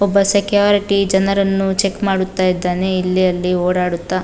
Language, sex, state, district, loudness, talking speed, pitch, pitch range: Kannada, female, Karnataka, Dakshina Kannada, -16 LUFS, 140 wpm, 190 Hz, 180-200 Hz